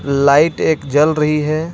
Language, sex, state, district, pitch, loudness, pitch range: Hindi, male, Jharkhand, Ranchi, 150 Hz, -14 LUFS, 140-155 Hz